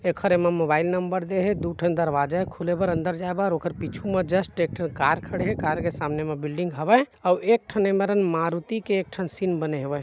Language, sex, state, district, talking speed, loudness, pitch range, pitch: Chhattisgarhi, male, Chhattisgarh, Bilaspur, 220 wpm, -24 LUFS, 165-190 Hz, 175 Hz